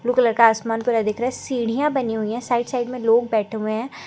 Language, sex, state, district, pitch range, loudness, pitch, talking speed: Hindi, female, Uttar Pradesh, Lucknow, 225-245 Hz, -21 LUFS, 235 Hz, 310 wpm